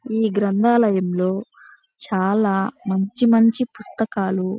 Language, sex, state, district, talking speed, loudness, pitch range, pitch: Telugu, female, Andhra Pradesh, Chittoor, 90 wpm, -20 LUFS, 195-230 Hz, 210 Hz